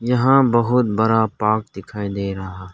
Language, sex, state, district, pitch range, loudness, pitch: Hindi, male, Arunachal Pradesh, Lower Dibang Valley, 100-120 Hz, -18 LUFS, 110 Hz